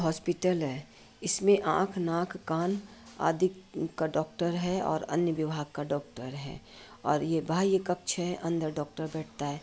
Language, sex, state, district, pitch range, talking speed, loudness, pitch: Hindi, female, Bihar, Madhepura, 155-185 Hz, 155 wpm, -31 LUFS, 165 Hz